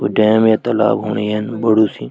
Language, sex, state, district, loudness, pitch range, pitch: Garhwali, male, Uttarakhand, Tehri Garhwal, -15 LUFS, 105-110 Hz, 110 Hz